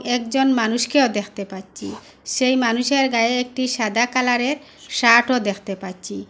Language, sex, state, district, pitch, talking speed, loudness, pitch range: Bengali, female, Assam, Hailakandi, 240 Hz, 125 wpm, -19 LUFS, 205-255 Hz